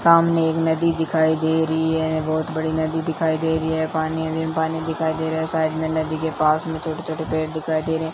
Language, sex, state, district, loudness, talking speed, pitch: Hindi, female, Rajasthan, Bikaner, -22 LUFS, 245 wpm, 160 Hz